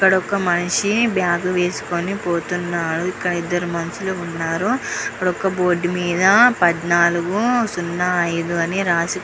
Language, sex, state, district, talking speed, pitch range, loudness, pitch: Telugu, female, Andhra Pradesh, Guntur, 115 wpm, 170-190 Hz, -19 LUFS, 175 Hz